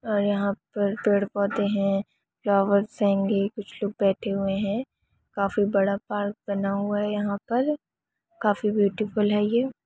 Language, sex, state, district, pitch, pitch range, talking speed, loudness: Hindi, female, Bihar, Purnia, 205 Hz, 200-210 Hz, 160 wpm, -25 LUFS